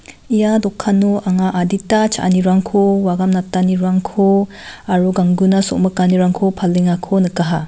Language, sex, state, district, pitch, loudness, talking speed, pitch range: Garo, female, Meghalaya, West Garo Hills, 185 Hz, -15 LUFS, 95 wpm, 185-200 Hz